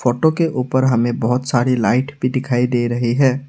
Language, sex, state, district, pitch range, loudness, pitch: Hindi, male, Assam, Sonitpur, 120-130 Hz, -17 LUFS, 125 Hz